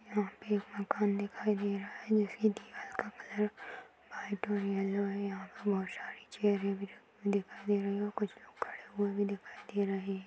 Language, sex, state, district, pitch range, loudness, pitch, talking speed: Hindi, female, Chhattisgarh, Balrampur, 200-210 Hz, -36 LUFS, 205 Hz, 145 wpm